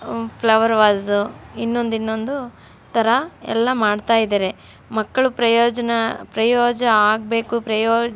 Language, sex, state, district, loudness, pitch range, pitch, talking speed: Kannada, female, Karnataka, Raichur, -19 LUFS, 220-235 Hz, 230 Hz, 105 wpm